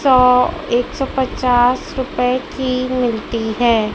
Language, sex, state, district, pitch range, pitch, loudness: Hindi, female, Madhya Pradesh, Dhar, 240-260 Hz, 250 Hz, -17 LUFS